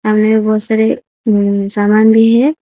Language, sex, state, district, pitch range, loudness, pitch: Hindi, female, Odisha, Khordha, 210-220 Hz, -12 LUFS, 215 Hz